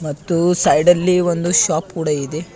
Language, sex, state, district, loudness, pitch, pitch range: Kannada, male, Karnataka, Bidar, -16 LUFS, 170 Hz, 155-180 Hz